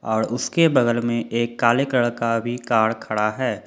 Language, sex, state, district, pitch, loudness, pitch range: Hindi, male, Jharkhand, Ranchi, 115 Hz, -21 LUFS, 115-125 Hz